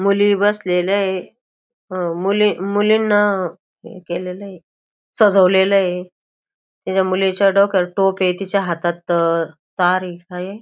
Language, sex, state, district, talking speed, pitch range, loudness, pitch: Marathi, female, Maharashtra, Aurangabad, 95 wpm, 180-200 Hz, -17 LUFS, 190 Hz